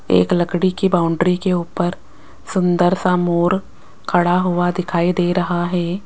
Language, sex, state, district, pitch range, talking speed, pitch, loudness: Hindi, female, Rajasthan, Jaipur, 175-180 Hz, 150 wpm, 180 Hz, -18 LUFS